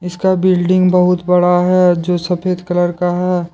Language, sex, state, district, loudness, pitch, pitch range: Hindi, male, Jharkhand, Deoghar, -14 LUFS, 180 Hz, 175-180 Hz